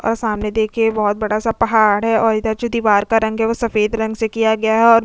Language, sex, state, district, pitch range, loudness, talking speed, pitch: Hindi, female, Goa, North and South Goa, 215-225 Hz, -16 LUFS, 285 wpm, 220 Hz